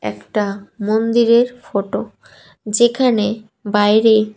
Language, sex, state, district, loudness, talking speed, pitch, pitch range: Bengali, female, Tripura, West Tripura, -16 LUFS, 80 wpm, 215 Hz, 205-235 Hz